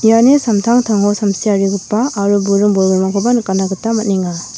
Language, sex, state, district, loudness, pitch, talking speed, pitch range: Garo, female, Meghalaya, West Garo Hills, -14 LUFS, 205 Hz, 120 wpm, 195-225 Hz